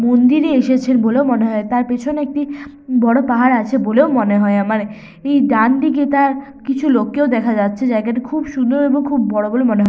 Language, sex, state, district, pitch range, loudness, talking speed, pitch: Bengali, female, West Bengal, Purulia, 230-280 Hz, -15 LUFS, 200 wpm, 255 Hz